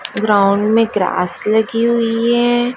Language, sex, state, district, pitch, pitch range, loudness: Hindi, female, Madhya Pradesh, Dhar, 225 Hz, 205-235 Hz, -15 LUFS